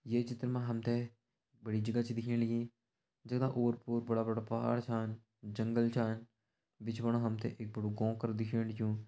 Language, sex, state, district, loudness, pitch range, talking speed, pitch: Hindi, male, Uttarakhand, Uttarkashi, -37 LUFS, 110-120 Hz, 185 wpm, 115 Hz